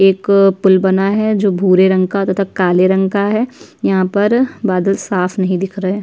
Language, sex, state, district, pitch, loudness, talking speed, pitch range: Hindi, female, Chhattisgarh, Sukma, 195 Hz, -14 LUFS, 200 wpm, 185-200 Hz